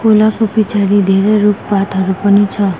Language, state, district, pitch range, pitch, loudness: Nepali, West Bengal, Darjeeling, 195-210 Hz, 205 Hz, -12 LUFS